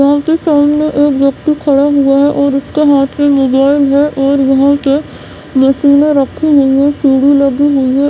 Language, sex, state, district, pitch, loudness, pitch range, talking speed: Hindi, female, Bihar, Madhepura, 280 Hz, -10 LUFS, 275-290 Hz, 170 wpm